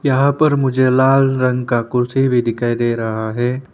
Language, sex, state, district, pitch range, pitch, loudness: Hindi, male, Arunachal Pradesh, Papum Pare, 120-135 Hz, 125 Hz, -16 LUFS